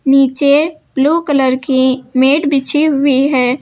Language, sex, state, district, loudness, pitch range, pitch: Hindi, female, Uttar Pradesh, Lucknow, -12 LUFS, 260-290 Hz, 275 Hz